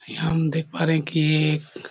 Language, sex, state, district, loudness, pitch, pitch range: Hindi, male, Chhattisgarh, Korba, -22 LUFS, 160 Hz, 155-160 Hz